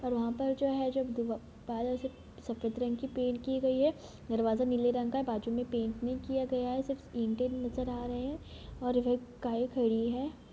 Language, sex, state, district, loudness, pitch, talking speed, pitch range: Hindi, female, Bihar, Purnia, -34 LUFS, 245 Hz, 215 wpm, 235-260 Hz